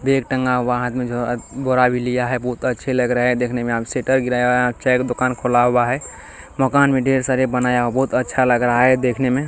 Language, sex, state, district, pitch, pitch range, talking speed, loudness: Hindi, male, Bihar, Lakhisarai, 125 Hz, 125-130 Hz, 255 wpm, -18 LUFS